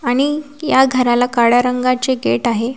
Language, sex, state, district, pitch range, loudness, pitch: Marathi, female, Maharashtra, Washim, 240-265 Hz, -15 LUFS, 250 Hz